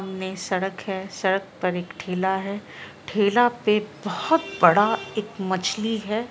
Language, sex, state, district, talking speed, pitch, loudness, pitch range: Hindi, female, Bihar, Araria, 150 wpm, 195 Hz, -24 LUFS, 190-215 Hz